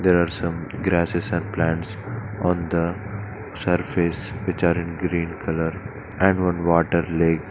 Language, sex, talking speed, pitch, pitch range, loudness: English, male, 145 wpm, 85 Hz, 85-95 Hz, -23 LUFS